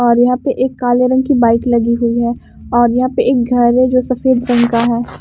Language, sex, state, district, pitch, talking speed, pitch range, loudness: Hindi, female, Haryana, Charkhi Dadri, 245 Hz, 255 wpm, 235-255 Hz, -13 LUFS